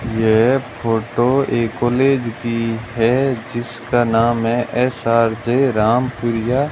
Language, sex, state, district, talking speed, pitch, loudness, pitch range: Hindi, male, Rajasthan, Bikaner, 105 wpm, 120 Hz, -17 LUFS, 115-125 Hz